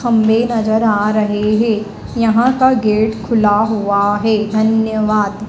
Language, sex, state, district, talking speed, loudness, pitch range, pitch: Hindi, female, Madhya Pradesh, Dhar, 130 wpm, -14 LUFS, 210-225 Hz, 220 Hz